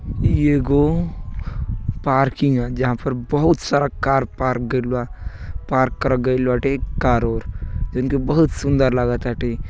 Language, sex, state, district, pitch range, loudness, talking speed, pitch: Bhojpuri, male, Uttar Pradesh, Gorakhpur, 120-140 Hz, -20 LUFS, 155 wpm, 130 Hz